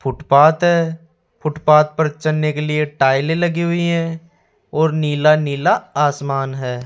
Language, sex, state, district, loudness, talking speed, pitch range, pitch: Hindi, male, Rajasthan, Jaipur, -17 LUFS, 140 wpm, 145-165 Hz, 155 Hz